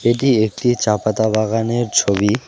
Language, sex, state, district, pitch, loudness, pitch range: Bengali, male, West Bengal, Alipurduar, 110 Hz, -17 LUFS, 105-120 Hz